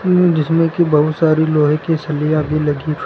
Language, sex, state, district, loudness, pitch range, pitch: Hindi, male, Uttar Pradesh, Lucknow, -15 LUFS, 150-165 Hz, 155 Hz